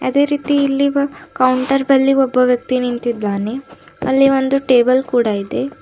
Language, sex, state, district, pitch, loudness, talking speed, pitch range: Kannada, female, Karnataka, Bidar, 265 Hz, -16 LUFS, 135 wpm, 250-275 Hz